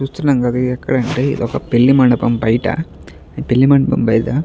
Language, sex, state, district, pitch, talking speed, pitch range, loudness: Telugu, male, Andhra Pradesh, Chittoor, 125 Hz, 160 wpm, 115-135 Hz, -15 LUFS